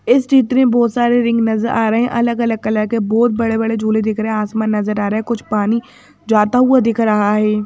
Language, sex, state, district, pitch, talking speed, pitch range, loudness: Hindi, female, Madhya Pradesh, Bhopal, 225 Hz, 265 wpm, 215-235 Hz, -15 LUFS